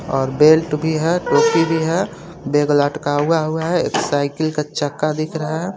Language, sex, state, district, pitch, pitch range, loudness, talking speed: Hindi, male, Jharkhand, Garhwa, 155 Hz, 145-165 Hz, -18 LUFS, 195 wpm